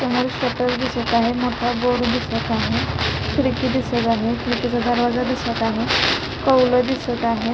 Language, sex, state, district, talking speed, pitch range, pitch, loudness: Marathi, female, Maharashtra, Sindhudurg, 145 wpm, 235-250 Hz, 245 Hz, -20 LUFS